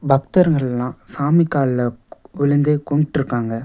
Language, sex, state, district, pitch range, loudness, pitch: Tamil, male, Tamil Nadu, Nilgiris, 125-150 Hz, -18 LUFS, 140 Hz